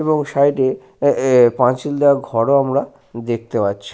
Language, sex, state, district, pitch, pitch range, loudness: Bengali, male, West Bengal, Paschim Medinipur, 135 Hz, 120-140 Hz, -16 LUFS